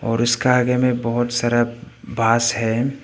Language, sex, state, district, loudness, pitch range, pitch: Hindi, male, Arunachal Pradesh, Papum Pare, -19 LUFS, 115-125 Hz, 120 Hz